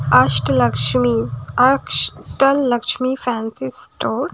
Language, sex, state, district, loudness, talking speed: Hindi, female, Odisha, Nuapada, -17 LUFS, 95 wpm